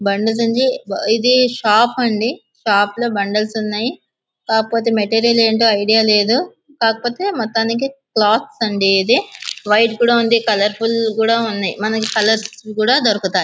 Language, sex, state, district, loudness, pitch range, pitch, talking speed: Telugu, male, Andhra Pradesh, Visakhapatnam, -16 LUFS, 215-235 Hz, 225 Hz, 125 wpm